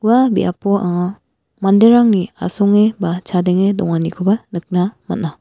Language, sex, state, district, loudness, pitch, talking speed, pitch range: Garo, female, Meghalaya, West Garo Hills, -15 LUFS, 195 Hz, 110 wpm, 180-210 Hz